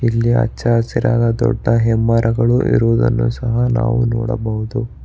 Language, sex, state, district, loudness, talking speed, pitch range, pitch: Kannada, male, Karnataka, Bangalore, -16 LUFS, 105 wpm, 115-120 Hz, 115 Hz